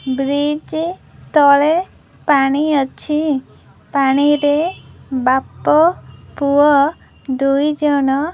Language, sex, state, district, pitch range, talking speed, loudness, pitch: Odia, female, Odisha, Khordha, 275-300 Hz, 70 wpm, -16 LUFS, 290 Hz